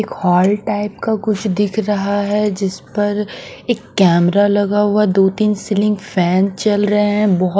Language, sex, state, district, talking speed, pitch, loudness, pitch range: Hindi, female, Bihar, West Champaran, 160 wpm, 205 Hz, -16 LUFS, 195-210 Hz